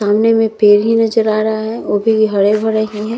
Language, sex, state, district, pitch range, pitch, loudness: Hindi, female, Bihar, Vaishali, 210-225 Hz, 215 Hz, -13 LUFS